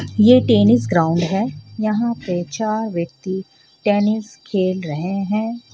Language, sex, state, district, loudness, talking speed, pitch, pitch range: Hindi, female, Jharkhand, Ranchi, -19 LUFS, 125 wpm, 200 Hz, 175-220 Hz